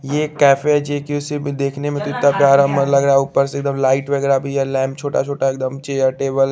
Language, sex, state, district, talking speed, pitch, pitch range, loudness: Hindi, male, Chandigarh, Chandigarh, 240 wpm, 140 Hz, 135-145 Hz, -17 LUFS